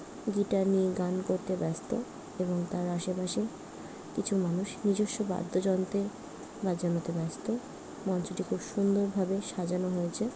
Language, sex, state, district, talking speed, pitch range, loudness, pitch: Bengali, female, West Bengal, Paschim Medinipur, 110 wpm, 180-205 Hz, -32 LUFS, 190 Hz